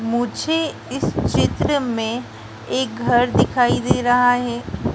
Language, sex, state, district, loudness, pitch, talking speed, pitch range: Hindi, female, Madhya Pradesh, Dhar, -19 LUFS, 245 Hz, 120 wpm, 235-255 Hz